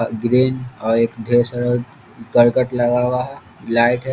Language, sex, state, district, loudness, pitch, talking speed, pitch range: Hindi, male, Bihar, East Champaran, -18 LUFS, 120 Hz, 160 wpm, 115-125 Hz